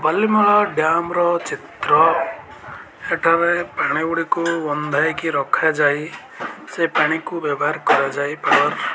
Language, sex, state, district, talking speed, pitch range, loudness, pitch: Odia, male, Odisha, Malkangiri, 115 wpm, 150-175 Hz, -18 LUFS, 165 Hz